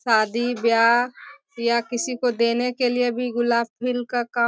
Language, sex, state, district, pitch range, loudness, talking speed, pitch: Hindi, female, Bihar, Bhagalpur, 235-245 Hz, -22 LUFS, 160 wpm, 240 Hz